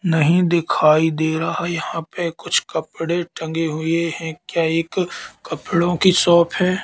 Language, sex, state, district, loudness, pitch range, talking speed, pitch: Hindi, male, Madhya Pradesh, Katni, -19 LUFS, 160-175 Hz, 150 wpm, 170 Hz